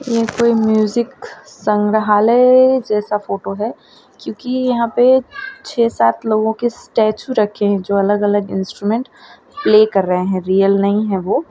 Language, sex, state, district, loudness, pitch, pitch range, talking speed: Hindi, female, Gujarat, Valsad, -15 LUFS, 215 Hz, 200-240 Hz, 150 wpm